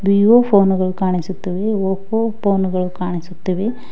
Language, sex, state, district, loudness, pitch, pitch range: Kannada, female, Karnataka, Koppal, -17 LUFS, 190 Hz, 185-205 Hz